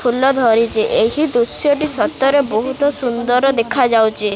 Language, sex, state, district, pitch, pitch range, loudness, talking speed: Odia, male, Odisha, Khordha, 245 Hz, 230-280 Hz, -15 LUFS, 125 wpm